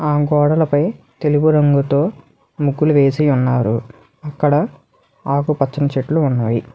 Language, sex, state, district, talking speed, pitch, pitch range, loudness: Telugu, male, Telangana, Hyderabad, 100 wpm, 145 Hz, 135-150 Hz, -16 LUFS